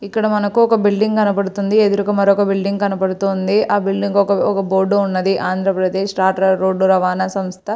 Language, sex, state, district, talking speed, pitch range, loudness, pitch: Telugu, female, Andhra Pradesh, Srikakulam, 155 wpm, 190-205 Hz, -16 LUFS, 200 Hz